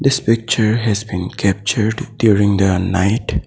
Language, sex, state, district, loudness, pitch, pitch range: English, male, Assam, Sonitpur, -16 LUFS, 110 Hz, 100-115 Hz